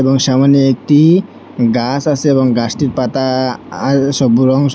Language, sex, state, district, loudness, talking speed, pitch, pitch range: Bengali, male, Assam, Hailakandi, -13 LUFS, 150 wpm, 135 Hz, 130-140 Hz